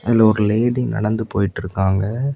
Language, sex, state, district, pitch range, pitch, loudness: Tamil, male, Tamil Nadu, Kanyakumari, 95-115 Hz, 110 Hz, -18 LUFS